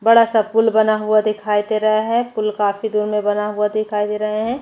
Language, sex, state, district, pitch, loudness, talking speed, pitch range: Hindi, female, Chhattisgarh, Bastar, 215 Hz, -18 LUFS, 180 wpm, 210-220 Hz